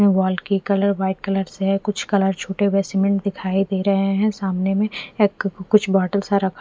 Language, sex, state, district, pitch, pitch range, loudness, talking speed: Hindi, female, Punjab, Fazilka, 195 Hz, 190-200 Hz, -20 LUFS, 200 wpm